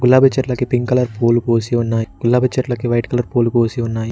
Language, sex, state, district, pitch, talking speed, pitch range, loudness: Telugu, male, Telangana, Mahabubabad, 120 Hz, 205 wpm, 115-125 Hz, -17 LUFS